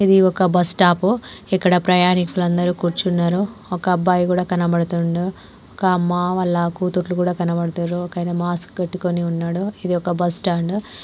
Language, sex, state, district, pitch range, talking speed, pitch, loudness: Telugu, female, Telangana, Karimnagar, 175-185 Hz, 145 wpm, 180 Hz, -19 LUFS